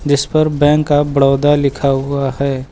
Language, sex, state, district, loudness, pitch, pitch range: Hindi, male, Uttar Pradesh, Lucknow, -14 LUFS, 140 Hz, 135-145 Hz